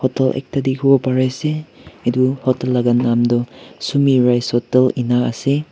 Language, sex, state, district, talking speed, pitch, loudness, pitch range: Nagamese, male, Nagaland, Kohima, 135 wpm, 130 Hz, -17 LUFS, 125-135 Hz